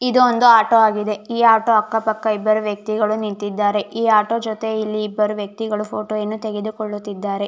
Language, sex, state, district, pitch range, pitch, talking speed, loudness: Kannada, female, Karnataka, Shimoga, 210-225 Hz, 215 Hz, 160 wpm, -18 LUFS